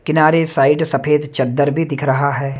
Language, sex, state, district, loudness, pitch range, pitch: Hindi, male, Maharashtra, Mumbai Suburban, -16 LUFS, 135-155 Hz, 145 Hz